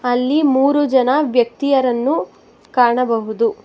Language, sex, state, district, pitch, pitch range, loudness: Kannada, female, Karnataka, Bangalore, 255 Hz, 245-280 Hz, -16 LUFS